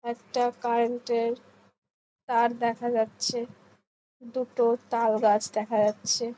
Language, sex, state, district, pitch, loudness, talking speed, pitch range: Bengali, female, West Bengal, Jhargram, 235 Hz, -27 LUFS, 105 wpm, 225-240 Hz